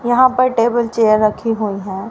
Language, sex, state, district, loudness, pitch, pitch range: Hindi, female, Haryana, Rohtak, -15 LUFS, 230 Hz, 215-240 Hz